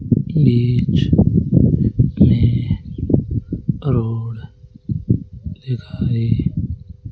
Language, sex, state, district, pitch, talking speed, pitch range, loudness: Hindi, male, Rajasthan, Jaipur, 115 Hz, 35 wpm, 110-130 Hz, -18 LUFS